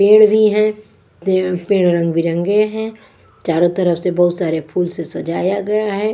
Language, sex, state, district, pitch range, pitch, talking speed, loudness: Hindi, female, Bihar, West Champaran, 175-215 Hz, 185 Hz, 155 wpm, -16 LUFS